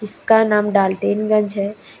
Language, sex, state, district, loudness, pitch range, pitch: Hindi, female, Jharkhand, Palamu, -17 LUFS, 200-215 Hz, 210 Hz